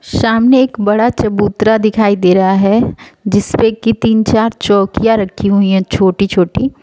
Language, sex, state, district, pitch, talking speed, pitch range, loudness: Hindi, female, Uttar Pradesh, Etah, 210 Hz, 150 wpm, 195-225 Hz, -12 LUFS